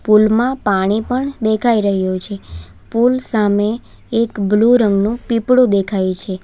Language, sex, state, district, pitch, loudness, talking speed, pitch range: Gujarati, female, Gujarat, Valsad, 215 Hz, -16 LUFS, 130 wpm, 195-235 Hz